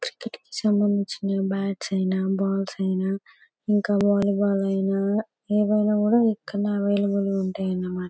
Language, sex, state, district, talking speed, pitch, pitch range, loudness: Telugu, female, Telangana, Karimnagar, 110 wpm, 200 Hz, 195-205 Hz, -24 LUFS